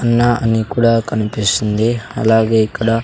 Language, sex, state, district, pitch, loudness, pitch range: Telugu, male, Andhra Pradesh, Sri Satya Sai, 115 Hz, -15 LUFS, 110-115 Hz